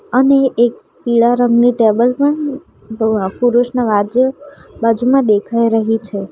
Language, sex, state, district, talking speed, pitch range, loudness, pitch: Gujarati, female, Gujarat, Valsad, 115 wpm, 225-255 Hz, -14 LUFS, 240 Hz